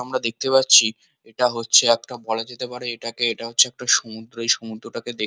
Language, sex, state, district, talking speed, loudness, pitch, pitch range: Bengali, male, West Bengal, Kolkata, 195 wpm, -19 LUFS, 115 Hz, 115-125 Hz